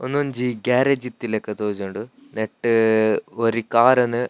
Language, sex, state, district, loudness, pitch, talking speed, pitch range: Tulu, male, Karnataka, Dakshina Kannada, -21 LUFS, 115 Hz, 125 wpm, 110-125 Hz